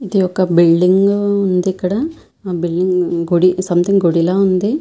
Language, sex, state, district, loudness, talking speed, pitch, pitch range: Telugu, female, Andhra Pradesh, Visakhapatnam, -15 LUFS, 135 wpm, 185 Hz, 175-195 Hz